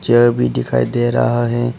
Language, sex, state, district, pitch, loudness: Hindi, male, Arunachal Pradesh, Papum Pare, 120 Hz, -16 LUFS